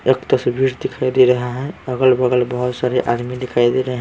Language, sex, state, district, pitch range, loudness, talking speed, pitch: Hindi, male, Bihar, Patna, 125-130 Hz, -17 LUFS, 210 wpm, 125 Hz